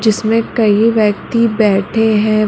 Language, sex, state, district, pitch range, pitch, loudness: Hindi, female, Uttar Pradesh, Muzaffarnagar, 210-225 Hz, 220 Hz, -13 LUFS